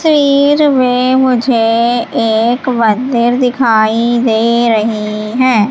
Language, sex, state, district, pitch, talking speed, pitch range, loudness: Hindi, female, Madhya Pradesh, Katni, 235 Hz, 95 wpm, 225-255 Hz, -11 LUFS